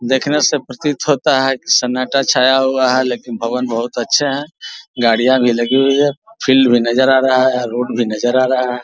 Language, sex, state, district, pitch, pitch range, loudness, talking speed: Hindi, male, Bihar, Vaishali, 130 Hz, 120-135 Hz, -14 LUFS, 215 wpm